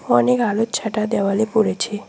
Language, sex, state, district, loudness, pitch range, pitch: Bengali, female, West Bengal, Cooch Behar, -19 LUFS, 205-225 Hz, 215 Hz